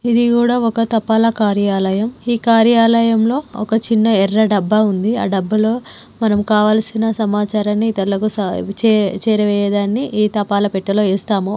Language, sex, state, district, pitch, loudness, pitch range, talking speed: Telugu, female, Telangana, Karimnagar, 215 Hz, -15 LUFS, 205-225 Hz, 125 wpm